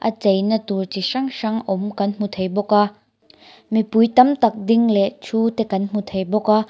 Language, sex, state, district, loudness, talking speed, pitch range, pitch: Mizo, female, Mizoram, Aizawl, -19 LUFS, 225 wpm, 200-225 Hz, 210 Hz